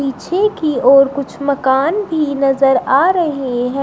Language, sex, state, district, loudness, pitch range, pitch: Hindi, female, Uttar Pradesh, Shamli, -14 LUFS, 265-315 Hz, 275 Hz